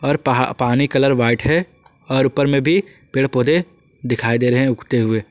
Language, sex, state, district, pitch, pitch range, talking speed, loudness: Hindi, male, Jharkhand, Ranchi, 135 Hz, 125-145 Hz, 180 wpm, -17 LUFS